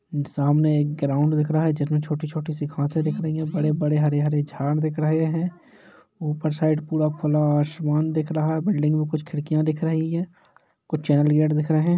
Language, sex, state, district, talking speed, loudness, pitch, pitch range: Hindi, male, Jharkhand, Jamtara, 205 wpm, -23 LUFS, 155 Hz, 150-155 Hz